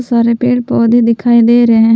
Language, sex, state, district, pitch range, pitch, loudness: Hindi, female, Jharkhand, Palamu, 230-240 Hz, 235 Hz, -10 LUFS